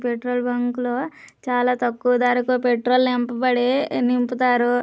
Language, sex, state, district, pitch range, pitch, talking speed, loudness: Telugu, female, Andhra Pradesh, Krishna, 245-250 Hz, 245 Hz, 110 wpm, -20 LUFS